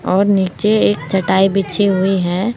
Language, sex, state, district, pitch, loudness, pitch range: Hindi, female, Uttar Pradesh, Saharanpur, 195 Hz, -14 LUFS, 190-200 Hz